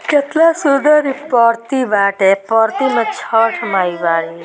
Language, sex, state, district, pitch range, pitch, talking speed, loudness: Bhojpuri, female, Bihar, Gopalganj, 195-280 Hz, 230 Hz, 150 wpm, -14 LUFS